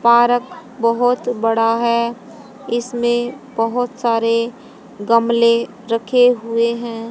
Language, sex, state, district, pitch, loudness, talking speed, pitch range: Hindi, female, Haryana, Jhajjar, 235 Hz, -17 LUFS, 95 wpm, 230-245 Hz